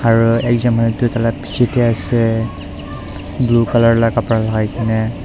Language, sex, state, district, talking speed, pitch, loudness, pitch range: Nagamese, male, Nagaland, Dimapur, 160 wpm, 115 Hz, -15 LUFS, 110-120 Hz